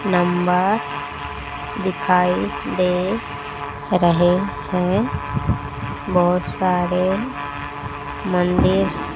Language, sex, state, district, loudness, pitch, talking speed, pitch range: Hindi, female, Odisha, Sambalpur, -20 LUFS, 180 Hz, 50 wpm, 145-185 Hz